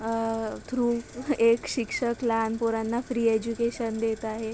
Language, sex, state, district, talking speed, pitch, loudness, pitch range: Marathi, female, Maharashtra, Chandrapur, 130 wpm, 230 Hz, -27 LUFS, 225-240 Hz